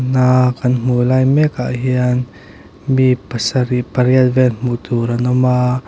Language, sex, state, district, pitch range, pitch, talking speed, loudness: Mizo, male, Mizoram, Aizawl, 125-130 Hz, 125 Hz, 155 wpm, -15 LUFS